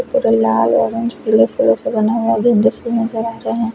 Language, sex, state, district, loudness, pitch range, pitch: Hindi, male, Odisha, Khordha, -15 LUFS, 185-230 Hz, 225 Hz